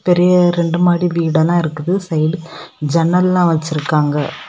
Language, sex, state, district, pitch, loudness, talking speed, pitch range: Tamil, female, Tamil Nadu, Kanyakumari, 170 Hz, -15 LUFS, 135 wpm, 160-175 Hz